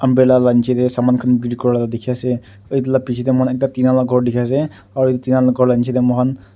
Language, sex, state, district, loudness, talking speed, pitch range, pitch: Nagamese, male, Nagaland, Kohima, -16 LUFS, 265 wpm, 125-130 Hz, 125 Hz